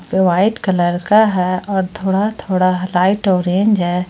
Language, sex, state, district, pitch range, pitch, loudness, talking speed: Hindi, female, Jharkhand, Ranchi, 180-200 Hz, 185 Hz, -15 LUFS, 160 wpm